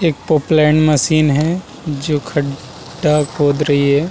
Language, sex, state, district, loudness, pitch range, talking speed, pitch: Hindi, male, Uttar Pradesh, Muzaffarnagar, -15 LUFS, 145-155 Hz, 130 wpm, 150 Hz